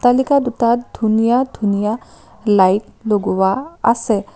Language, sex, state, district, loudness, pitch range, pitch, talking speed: Assamese, female, Assam, Kamrup Metropolitan, -17 LUFS, 205-245 Hz, 225 Hz, 95 wpm